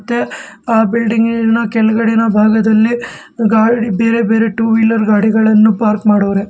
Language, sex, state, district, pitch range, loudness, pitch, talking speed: Kannada, male, Karnataka, Bangalore, 215-230 Hz, -12 LUFS, 225 Hz, 120 wpm